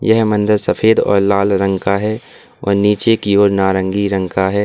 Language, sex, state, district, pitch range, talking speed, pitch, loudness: Hindi, male, Uttar Pradesh, Lalitpur, 95-105 Hz, 205 wpm, 100 Hz, -14 LUFS